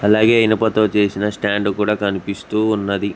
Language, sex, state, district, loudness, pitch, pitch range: Telugu, male, Telangana, Mahabubabad, -17 LUFS, 105 Hz, 100-110 Hz